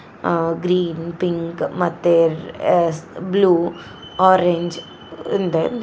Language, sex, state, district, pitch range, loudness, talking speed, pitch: Kannada, female, Karnataka, Koppal, 170-180 Hz, -19 LUFS, 80 wpm, 170 Hz